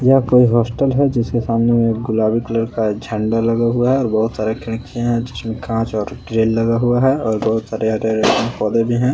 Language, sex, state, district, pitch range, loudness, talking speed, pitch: Hindi, male, Jharkhand, Palamu, 110-120 Hz, -17 LUFS, 215 wpm, 115 Hz